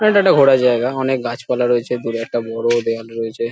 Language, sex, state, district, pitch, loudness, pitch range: Bengali, male, West Bengal, Jhargram, 120 Hz, -17 LUFS, 115-125 Hz